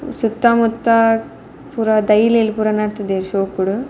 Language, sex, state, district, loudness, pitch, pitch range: Tulu, female, Karnataka, Dakshina Kannada, -16 LUFS, 220 Hz, 210-230 Hz